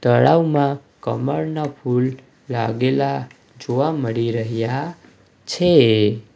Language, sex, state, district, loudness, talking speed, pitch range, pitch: Gujarati, male, Gujarat, Valsad, -19 LUFS, 75 wpm, 115-140 Hz, 130 Hz